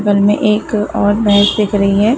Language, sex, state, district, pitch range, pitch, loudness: Hindi, female, Chhattisgarh, Bilaspur, 205-210 Hz, 210 Hz, -13 LUFS